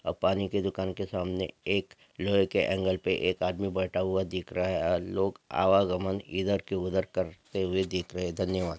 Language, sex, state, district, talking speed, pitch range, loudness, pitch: Hindi, male, Chhattisgarh, Bastar, 200 wpm, 90-95 Hz, -30 LUFS, 95 Hz